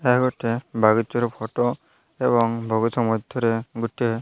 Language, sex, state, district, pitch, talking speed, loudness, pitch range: Odia, male, Odisha, Malkangiri, 115 Hz, 130 wpm, -23 LUFS, 115-120 Hz